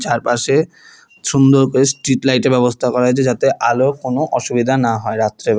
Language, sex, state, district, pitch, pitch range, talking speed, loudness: Bengali, male, West Bengal, Alipurduar, 130 Hz, 120-135 Hz, 160 wpm, -15 LUFS